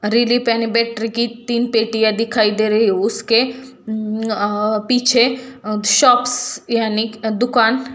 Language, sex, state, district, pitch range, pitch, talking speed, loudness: Hindi, female, Jharkhand, Jamtara, 220-245 Hz, 230 Hz, 90 wpm, -17 LUFS